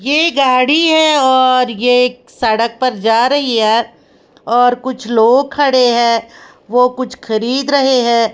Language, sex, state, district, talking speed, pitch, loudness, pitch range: Hindi, female, Bihar, West Champaran, 150 wpm, 250 Hz, -12 LUFS, 235-265 Hz